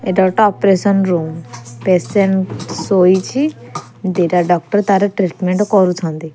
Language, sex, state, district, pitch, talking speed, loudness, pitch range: Odia, female, Odisha, Khordha, 185 Hz, 105 wpm, -15 LUFS, 175-195 Hz